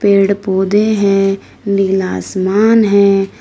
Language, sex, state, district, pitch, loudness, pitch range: Hindi, female, Uttar Pradesh, Shamli, 195 Hz, -13 LUFS, 195-205 Hz